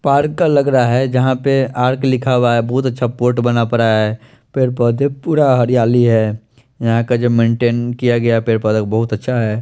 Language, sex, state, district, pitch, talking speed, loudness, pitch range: Hindi, male, Chandigarh, Chandigarh, 120 Hz, 210 wpm, -15 LUFS, 115-130 Hz